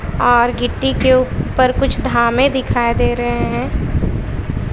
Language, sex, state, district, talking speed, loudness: Hindi, female, Bihar, West Champaran, 125 wpm, -16 LUFS